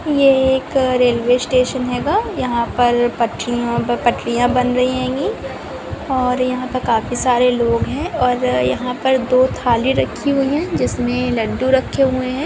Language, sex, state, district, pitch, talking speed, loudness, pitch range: Hindi, female, Chhattisgarh, Bilaspur, 250 Hz, 155 wpm, -17 LUFS, 245-265 Hz